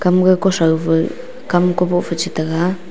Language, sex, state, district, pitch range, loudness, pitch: Wancho, female, Arunachal Pradesh, Longding, 165-180 Hz, -16 LUFS, 175 Hz